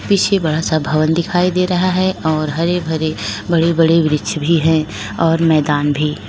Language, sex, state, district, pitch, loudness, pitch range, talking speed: Hindi, female, Uttar Pradesh, Lalitpur, 160 Hz, -15 LUFS, 155-175 Hz, 180 wpm